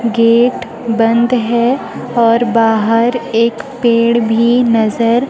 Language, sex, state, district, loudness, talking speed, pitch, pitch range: Hindi, female, Chhattisgarh, Raipur, -12 LUFS, 100 wpm, 235 Hz, 230-240 Hz